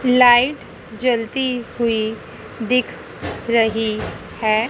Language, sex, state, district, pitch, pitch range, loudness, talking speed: Hindi, female, Madhya Pradesh, Dhar, 235 Hz, 225-250 Hz, -19 LUFS, 75 wpm